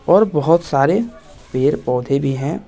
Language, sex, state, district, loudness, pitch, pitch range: Hindi, male, Bihar, West Champaran, -17 LUFS, 145 Hz, 135-175 Hz